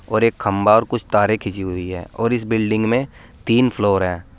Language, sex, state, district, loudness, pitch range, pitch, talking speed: Hindi, male, Uttar Pradesh, Saharanpur, -19 LUFS, 95-115 Hz, 110 Hz, 220 wpm